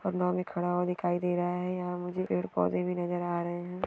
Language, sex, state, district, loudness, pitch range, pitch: Hindi, female, Maharashtra, Nagpur, -31 LUFS, 175-180 Hz, 175 Hz